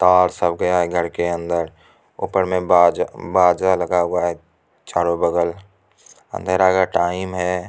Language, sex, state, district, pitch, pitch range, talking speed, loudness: Hindi, male, Bihar, Supaul, 90 Hz, 85-90 Hz, 135 wpm, -19 LUFS